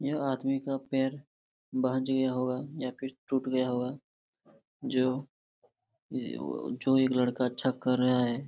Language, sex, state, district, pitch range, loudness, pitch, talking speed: Hindi, male, Jharkhand, Jamtara, 125-135 Hz, -31 LUFS, 130 Hz, 155 wpm